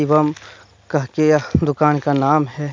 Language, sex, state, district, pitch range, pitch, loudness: Hindi, male, Jharkhand, Deoghar, 145-155 Hz, 150 Hz, -18 LUFS